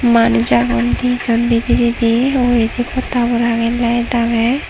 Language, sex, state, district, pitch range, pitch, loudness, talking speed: Chakma, female, Tripura, Dhalai, 230-245 Hz, 235 Hz, -15 LUFS, 140 wpm